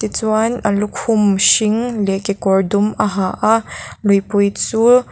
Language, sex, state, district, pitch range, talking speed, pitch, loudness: Mizo, female, Mizoram, Aizawl, 200-220 Hz, 140 wpm, 210 Hz, -15 LUFS